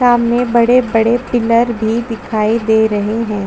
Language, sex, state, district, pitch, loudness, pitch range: Hindi, female, Chhattisgarh, Bastar, 230 Hz, -14 LUFS, 220-240 Hz